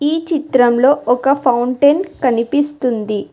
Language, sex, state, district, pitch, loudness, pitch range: Telugu, female, Telangana, Hyderabad, 265 Hz, -15 LUFS, 245-290 Hz